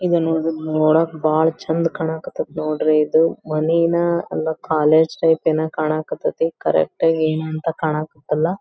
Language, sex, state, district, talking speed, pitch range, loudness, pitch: Kannada, female, Karnataka, Belgaum, 145 wpm, 155-165 Hz, -19 LUFS, 160 Hz